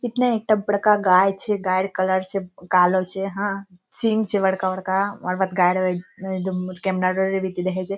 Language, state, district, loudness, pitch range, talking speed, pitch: Surjapuri, Bihar, Kishanganj, -21 LUFS, 185-200 Hz, 145 wpm, 190 Hz